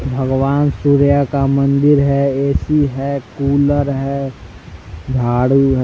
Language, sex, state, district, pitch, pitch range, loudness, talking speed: Hindi, male, Bihar, Muzaffarpur, 140 Hz, 130-140 Hz, -15 LUFS, 115 wpm